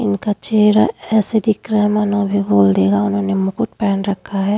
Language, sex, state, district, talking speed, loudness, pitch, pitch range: Hindi, female, Uttar Pradesh, Hamirpur, 195 wpm, -16 LUFS, 205 Hz, 190-215 Hz